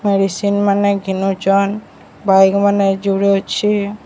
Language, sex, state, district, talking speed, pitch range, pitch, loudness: Odia, male, Odisha, Sambalpur, 90 wpm, 195-200 Hz, 200 Hz, -15 LUFS